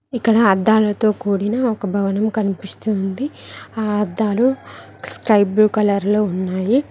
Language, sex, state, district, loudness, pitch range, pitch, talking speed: Telugu, female, Telangana, Mahabubabad, -18 LUFS, 200-220 Hz, 210 Hz, 95 wpm